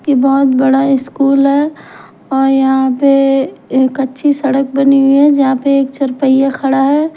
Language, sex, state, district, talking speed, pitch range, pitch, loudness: Hindi, female, Punjab, Kapurthala, 175 wpm, 265-275 Hz, 275 Hz, -12 LUFS